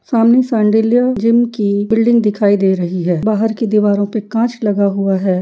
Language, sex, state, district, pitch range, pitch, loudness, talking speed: Hindi, female, Uttar Pradesh, Jyotiba Phule Nagar, 200-230 Hz, 215 Hz, -14 LUFS, 190 wpm